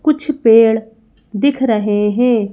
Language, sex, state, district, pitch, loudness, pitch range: Hindi, female, Madhya Pradesh, Bhopal, 225 Hz, -14 LUFS, 220-265 Hz